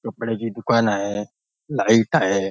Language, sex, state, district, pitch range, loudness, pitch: Marathi, male, Maharashtra, Nagpur, 100-115 Hz, -21 LUFS, 110 Hz